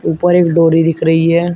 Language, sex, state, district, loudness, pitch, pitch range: Hindi, male, Uttar Pradesh, Shamli, -11 LUFS, 165 Hz, 165-175 Hz